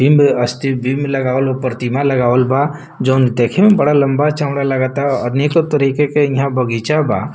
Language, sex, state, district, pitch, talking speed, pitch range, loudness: Bhojpuri, male, Bihar, Muzaffarpur, 135 Hz, 165 wpm, 130-145 Hz, -15 LUFS